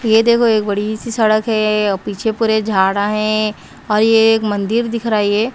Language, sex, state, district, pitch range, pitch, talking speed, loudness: Hindi, female, Bihar, Katihar, 210-225 Hz, 215 Hz, 195 wpm, -15 LUFS